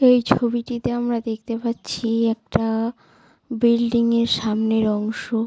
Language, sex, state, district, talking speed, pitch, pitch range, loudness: Bengali, female, West Bengal, Jalpaiguri, 110 wpm, 230 Hz, 225-235 Hz, -21 LUFS